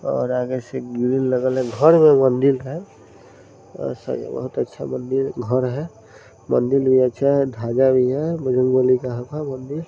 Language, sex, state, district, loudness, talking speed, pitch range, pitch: Hindi, male, Bihar, Saran, -19 LUFS, 175 wpm, 125-140 Hz, 130 Hz